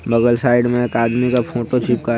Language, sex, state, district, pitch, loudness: Hindi, male, Bihar, Sitamarhi, 120 Hz, -17 LUFS